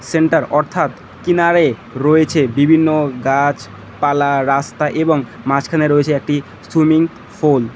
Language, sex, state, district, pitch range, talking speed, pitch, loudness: Bengali, male, West Bengal, Cooch Behar, 135-160 Hz, 115 wpm, 145 Hz, -15 LUFS